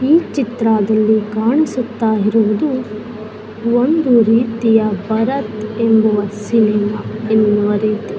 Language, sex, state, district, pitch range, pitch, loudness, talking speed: Kannada, female, Karnataka, Dakshina Kannada, 215-235 Hz, 220 Hz, -15 LUFS, 75 wpm